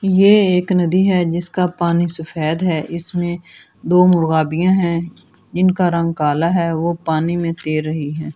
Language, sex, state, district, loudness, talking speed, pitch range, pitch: Hindi, female, Delhi, New Delhi, -17 LUFS, 165 wpm, 160-180 Hz, 170 Hz